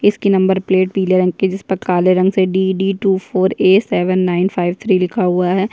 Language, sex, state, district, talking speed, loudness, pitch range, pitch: Hindi, female, Chhattisgarh, Bastar, 250 wpm, -15 LUFS, 185-195 Hz, 190 Hz